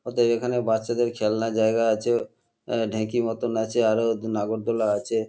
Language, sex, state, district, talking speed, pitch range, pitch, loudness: Bengali, male, West Bengal, North 24 Parganas, 145 wpm, 110-120 Hz, 115 Hz, -24 LUFS